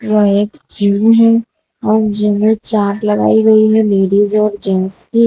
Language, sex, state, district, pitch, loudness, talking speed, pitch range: Hindi, female, Gujarat, Valsad, 210 Hz, -12 LUFS, 170 wpm, 205-220 Hz